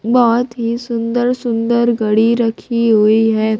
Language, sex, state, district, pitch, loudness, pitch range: Hindi, female, Bihar, Kaimur, 230 Hz, -15 LUFS, 225-235 Hz